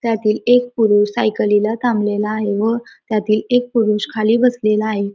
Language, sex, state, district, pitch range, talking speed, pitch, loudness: Marathi, female, Maharashtra, Pune, 210-235 Hz, 150 wpm, 215 Hz, -17 LUFS